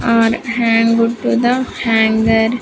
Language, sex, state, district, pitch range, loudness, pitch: English, female, Andhra Pradesh, Sri Satya Sai, 225-235 Hz, -14 LUFS, 230 Hz